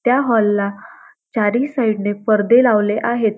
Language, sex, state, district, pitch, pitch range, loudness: Marathi, female, Maharashtra, Dhule, 220 Hz, 205-240 Hz, -16 LUFS